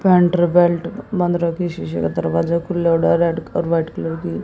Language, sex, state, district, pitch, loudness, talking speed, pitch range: Hindi, female, Haryana, Jhajjar, 170 Hz, -18 LUFS, 160 wpm, 165-175 Hz